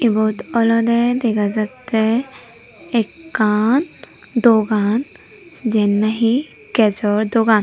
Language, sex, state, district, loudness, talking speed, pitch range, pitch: Chakma, female, Tripura, Unakoti, -17 LUFS, 80 wpm, 215-245 Hz, 230 Hz